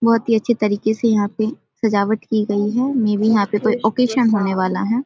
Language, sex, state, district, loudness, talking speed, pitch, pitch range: Hindi, female, Bihar, Samastipur, -18 LUFS, 235 wpm, 220 Hz, 205-230 Hz